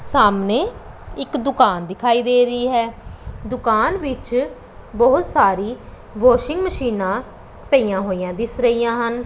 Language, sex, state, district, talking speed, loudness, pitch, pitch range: Punjabi, female, Punjab, Pathankot, 115 wpm, -18 LUFS, 240 Hz, 215-255 Hz